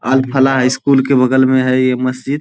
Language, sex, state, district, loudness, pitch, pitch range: Hindi, male, Bihar, Jamui, -13 LUFS, 130 Hz, 130-135 Hz